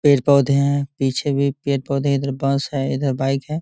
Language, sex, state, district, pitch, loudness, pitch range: Hindi, male, Bihar, Gopalganj, 140 Hz, -19 LUFS, 135-140 Hz